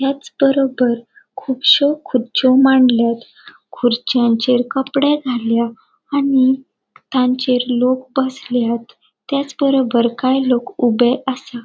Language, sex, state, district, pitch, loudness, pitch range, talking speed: Konkani, female, Goa, North and South Goa, 255 Hz, -16 LUFS, 245-275 Hz, 95 wpm